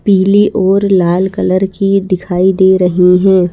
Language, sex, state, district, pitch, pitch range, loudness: Hindi, female, Madhya Pradesh, Bhopal, 190 Hz, 185-195 Hz, -11 LUFS